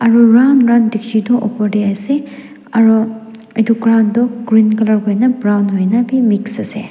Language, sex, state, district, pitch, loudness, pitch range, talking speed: Nagamese, female, Nagaland, Dimapur, 225 Hz, -13 LUFS, 215-235 Hz, 175 wpm